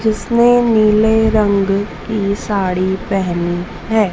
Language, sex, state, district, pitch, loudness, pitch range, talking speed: Hindi, female, Madhya Pradesh, Dhar, 205 Hz, -15 LUFS, 190-220 Hz, 100 wpm